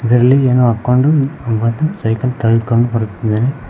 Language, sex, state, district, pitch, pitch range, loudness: Kannada, male, Karnataka, Koppal, 120 Hz, 115-130 Hz, -14 LUFS